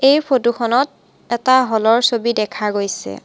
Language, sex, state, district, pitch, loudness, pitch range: Assamese, female, Assam, Sonitpur, 235 Hz, -17 LUFS, 215-255 Hz